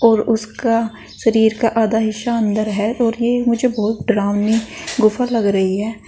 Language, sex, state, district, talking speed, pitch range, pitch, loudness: Hindi, female, Uttar Pradesh, Saharanpur, 170 wpm, 215-235 Hz, 225 Hz, -17 LUFS